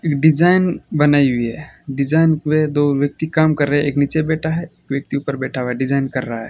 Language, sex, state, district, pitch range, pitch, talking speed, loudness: Hindi, male, Rajasthan, Bikaner, 140-155 Hz, 145 Hz, 250 wpm, -17 LUFS